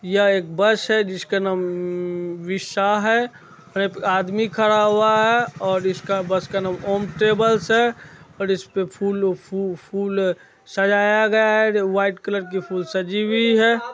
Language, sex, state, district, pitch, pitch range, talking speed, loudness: Maithili, male, Bihar, Supaul, 195 Hz, 190-215 Hz, 155 wpm, -20 LUFS